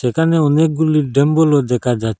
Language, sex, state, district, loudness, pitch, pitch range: Bengali, male, Assam, Hailakandi, -15 LUFS, 145 Hz, 125-160 Hz